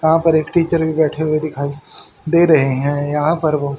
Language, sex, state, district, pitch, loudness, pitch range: Hindi, male, Haryana, Rohtak, 155 Hz, -16 LUFS, 145-160 Hz